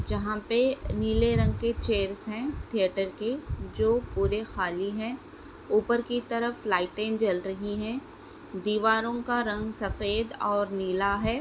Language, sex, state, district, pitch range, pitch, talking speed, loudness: Hindi, female, Maharashtra, Aurangabad, 195-235 Hz, 215 Hz, 140 wpm, -28 LUFS